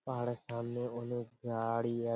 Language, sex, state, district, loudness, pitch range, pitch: Bengali, male, West Bengal, Purulia, -38 LUFS, 115-120 Hz, 120 Hz